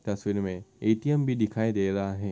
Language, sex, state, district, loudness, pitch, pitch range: Hindi, male, Uttar Pradesh, Muzaffarnagar, -28 LUFS, 105 Hz, 100-110 Hz